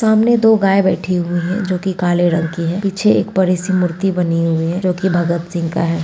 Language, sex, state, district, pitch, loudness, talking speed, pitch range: Hindi, female, Bihar, Muzaffarpur, 180 Hz, -16 LUFS, 240 wpm, 170-190 Hz